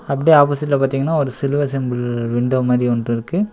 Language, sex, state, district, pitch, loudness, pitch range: Tamil, male, Tamil Nadu, Nilgiris, 135 Hz, -17 LUFS, 120-145 Hz